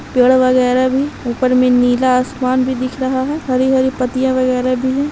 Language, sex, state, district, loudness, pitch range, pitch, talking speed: Hindi, female, Bihar, Begusarai, -15 LUFS, 255-260 Hz, 255 Hz, 225 wpm